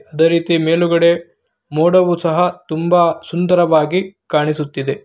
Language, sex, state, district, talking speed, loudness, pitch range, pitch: Kannada, male, Karnataka, Gulbarga, 95 wpm, -15 LUFS, 160-175 Hz, 170 Hz